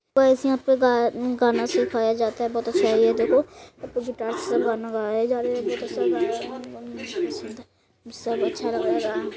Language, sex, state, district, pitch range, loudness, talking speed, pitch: Hindi, male, Uttar Pradesh, Hamirpur, 225-270 Hz, -23 LUFS, 180 wpm, 245 Hz